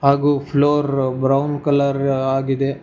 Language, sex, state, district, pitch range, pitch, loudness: Kannada, male, Karnataka, Bangalore, 135-145 Hz, 140 Hz, -18 LUFS